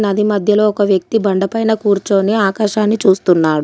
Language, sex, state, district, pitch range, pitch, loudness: Telugu, female, Telangana, Komaram Bheem, 195-215 Hz, 205 Hz, -14 LUFS